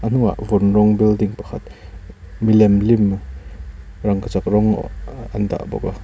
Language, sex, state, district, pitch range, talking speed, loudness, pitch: Mizo, male, Mizoram, Aizawl, 90-105 Hz, 140 wpm, -17 LUFS, 100 Hz